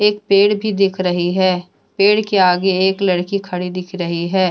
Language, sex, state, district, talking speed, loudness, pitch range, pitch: Hindi, female, Jharkhand, Deoghar, 185 wpm, -16 LUFS, 180-200 Hz, 190 Hz